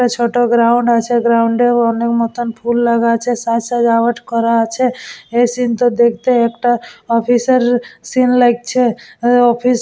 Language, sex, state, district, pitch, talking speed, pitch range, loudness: Bengali, female, West Bengal, Purulia, 240 Hz, 165 wpm, 235-245 Hz, -14 LUFS